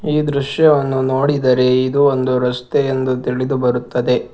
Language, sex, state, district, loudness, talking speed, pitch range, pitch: Kannada, male, Karnataka, Bangalore, -16 LUFS, 125 wpm, 125-140 Hz, 130 Hz